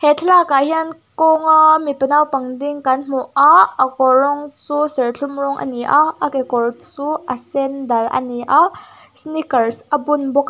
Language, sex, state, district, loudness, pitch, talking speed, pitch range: Mizo, female, Mizoram, Aizawl, -16 LUFS, 285 Hz, 195 wpm, 260-310 Hz